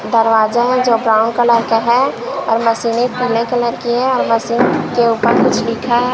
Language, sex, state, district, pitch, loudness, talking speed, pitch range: Hindi, female, Chhattisgarh, Raipur, 235 Hz, -14 LUFS, 185 wpm, 230-245 Hz